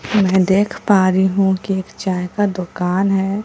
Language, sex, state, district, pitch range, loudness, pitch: Hindi, female, Bihar, Katihar, 185-200 Hz, -17 LUFS, 190 Hz